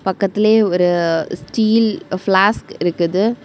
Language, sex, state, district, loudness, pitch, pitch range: Tamil, female, Tamil Nadu, Kanyakumari, -16 LUFS, 190 Hz, 175-215 Hz